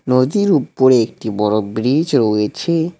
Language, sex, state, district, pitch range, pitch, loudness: Bengali, male, West Bengal, Cooch Behar, 110-160 Hz, 130 Hz, -16 LUFS